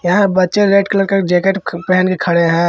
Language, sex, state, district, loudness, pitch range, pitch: Hindi, male, Jharkhand, Ranchi, -14 LUFS, 175-195 Hz, 185 Hz